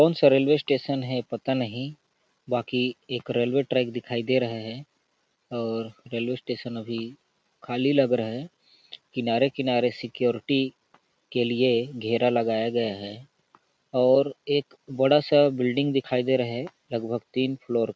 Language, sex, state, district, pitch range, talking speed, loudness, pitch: Hindi, male, Chhattisgarh, Balrampur, 120-135 Hz, 150 wpm, -25 LUFS, 125 Hz